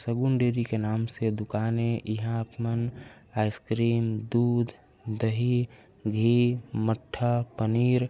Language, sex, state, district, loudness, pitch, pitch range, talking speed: Chhattisgarhi, male, Chhattisgarh, Raigarh, -28 LUFS, 115 Hz, 110-120 Hz, 125 wpm